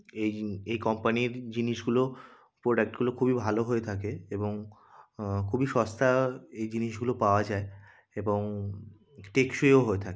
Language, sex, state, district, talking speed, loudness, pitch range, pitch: Bengali, male, West Bengal, Kolkata, 130 wpm, -29 LUFS, 105-125 Hz, 110 Hz